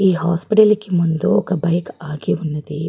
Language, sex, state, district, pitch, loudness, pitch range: Telugu, female, Andhra Pradesh, Guntur, 170 Hz, -18 LUFS, 160-185 Hz